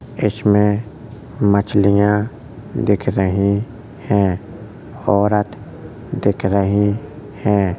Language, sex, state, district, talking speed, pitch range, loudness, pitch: Hindi, male, Uttar Pradesh, Jalaun, 70 wpm, 100-115 Hz, -18 LUFS, 105 Hz